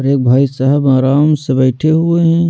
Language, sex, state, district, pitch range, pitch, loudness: Hindi, male, Delhi, New Delhi, 130-155 Hz, 140 Hz, -12 LUFS